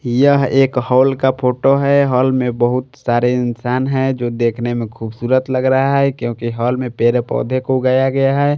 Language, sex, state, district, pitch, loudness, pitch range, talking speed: Hindi, male, Bihar, Patna, 130 Hz, -16 LUFS, 120-135 Hz, 195 wpm